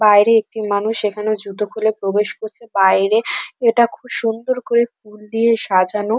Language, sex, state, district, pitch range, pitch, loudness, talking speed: Bengali, female, West Bengal, Dakshin Dinajpur, 210-230 Hz, 215 Hz, -17 LUFS, 155 wpm